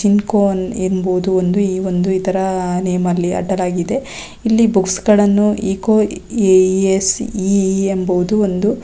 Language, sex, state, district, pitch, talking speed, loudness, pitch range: Kannada, female, Karnataka, Raichur, 190 Hz, 120 wpm, -15 LUFS, 185-205 Hz